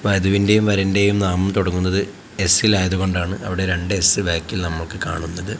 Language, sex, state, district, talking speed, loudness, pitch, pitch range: Malayalam, male, Kerala, Kozhikode, 130 wpm, -19 LUFS, 95 Hz, 90-100 Hz